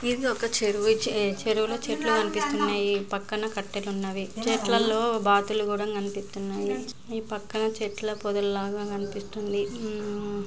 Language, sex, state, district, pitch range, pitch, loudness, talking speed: Telugu, female, Andhra Pradesh, Guntur, 200-220 Hz, 210 Hz, -28 LUFS, 105 wpm